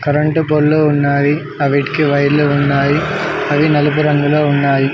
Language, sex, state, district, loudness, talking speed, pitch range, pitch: Telugu, male, Telangana, Mahabubabad, -14 LUFS, 120 wpm, 140-150 Hz, 145 Hz